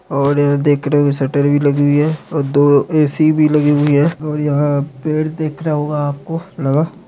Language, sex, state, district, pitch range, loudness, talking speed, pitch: Hindi, male, Bihar, Muzaffarpur, 145-155 Hz, -15 LUFS, 205 wpm, 145 Hz